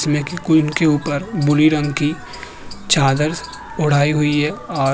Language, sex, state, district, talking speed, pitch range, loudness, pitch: Hindi, male, Uttar Pradesh, Hamirpur, 120 wpm, 145-155 Hz, -17 LUFS, 150 Hz